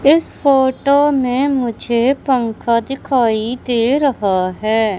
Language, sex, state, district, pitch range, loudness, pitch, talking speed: Hindi, female, Madhya Pradesh, Katni, 230-275 Hz, -16 LUFS, 250 Hz, 110 wpm